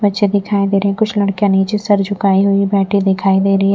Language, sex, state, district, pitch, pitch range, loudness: Hindi, female, Bihar, Patna, 200 Hz, 195-205 Hz, -14 LUFS